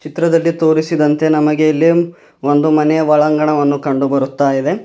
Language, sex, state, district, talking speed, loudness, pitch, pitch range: Kannada, male, Karnataka, Bidar, 125 wpm, -13 LUFS, 155 Hz, 145-160 Hz